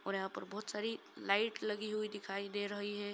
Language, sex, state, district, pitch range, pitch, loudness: Hindi, female, Bihar, Saran, 200-215 Hz, 205 Hz, -39 LUFS